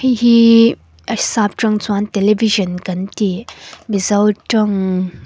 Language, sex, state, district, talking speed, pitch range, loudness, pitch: Mizo, female, Mizoram, Aizawl, 100 wpm, 195-220 Hz, -15 LUFS, 210 Hz